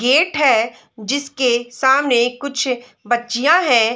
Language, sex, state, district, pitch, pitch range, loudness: Hindi, female, Chhattisgarh, Bilaspur, 250 Hz, 240-280 Hz, -17 LUFS